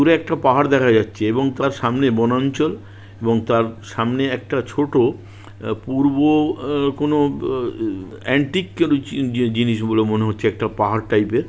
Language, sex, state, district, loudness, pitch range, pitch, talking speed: Bengali, male, West Bengal, Purulia, -19 LUFS, 110-145 Hz, 125 Hz, 145 wpm